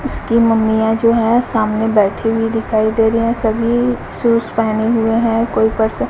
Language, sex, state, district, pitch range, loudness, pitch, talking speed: Hindi, female, Chhattisgarh, Raipur, 220-230 Hz, -15 LUFS, 225 Hz, 195 wpm